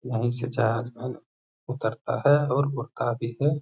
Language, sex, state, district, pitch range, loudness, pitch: Hindi, male, Bihar, Gaya, 120-140 Hz, -26 LUFS, 125 Hz